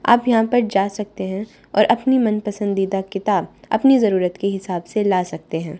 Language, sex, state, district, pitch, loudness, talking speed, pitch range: Hindi, female, Haryana, Charkhi Dadri, 200 Hz, -19 LUFS, 195 wpm, 190-220 Hz